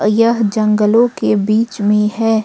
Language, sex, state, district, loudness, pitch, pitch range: Hindi, female, Jharkhand, Ranchi, -14 LUFS, 215 Hz, 210-225 Hz